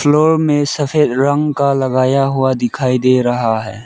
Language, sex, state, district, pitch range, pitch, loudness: Hindi, male, Arunachal Pradesh, Lower Dibang Valley, 125-145 Hz, 135 Hz, -14 LUFS